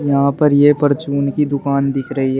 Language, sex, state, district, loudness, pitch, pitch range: Hindi, male, Uttar Pradesh, Shamli, -15 LUFS, 140 Hz, 140-145 Hz